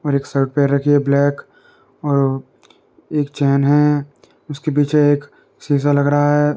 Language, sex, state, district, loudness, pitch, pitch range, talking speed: Hindi, male, Uttar Pradesh, Muzaffarnagar, -17 LUFS, 145 Hz, 140-150 Hz, 165 wpm